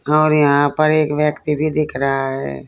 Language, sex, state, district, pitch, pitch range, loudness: Hindi, female, Uttar Pradesh, Saharanpur, 150 Hz, 135-155 Hz, -17 LUFS